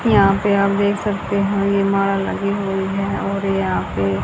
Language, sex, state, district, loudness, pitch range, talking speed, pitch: Hindi, female, Haryana, Jhajjar, -19 LUFS, 195-200 Hz, 185 wpm, 200 Hz